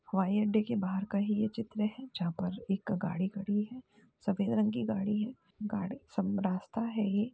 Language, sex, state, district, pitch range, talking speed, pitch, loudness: Hindi, female, Uttar Pradesh, Jalaun, 195-220 Hz, 215 wpm, 210 Hz, -34 LUFS